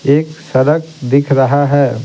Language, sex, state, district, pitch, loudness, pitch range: Hindi, male, Bihar, Patna, 140 Hz, -13 LUFS, 135-150 Hz